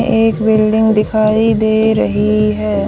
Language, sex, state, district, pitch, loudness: Hindi, female, Haryana, Rohtak, 215 Hz, -13 LUFS